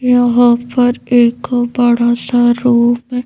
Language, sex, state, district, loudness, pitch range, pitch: Hindi, female, Madhya Pradesh, Bhopal, -12 LUFS, 240-245 Hz, 245 Hz